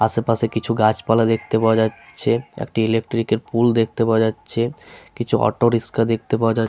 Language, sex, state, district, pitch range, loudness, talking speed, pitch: Bengali, male, West Bengal, Paschim Medinipur, 110-115 Hz, -19 LUFS, 180 wpm, 115 Hz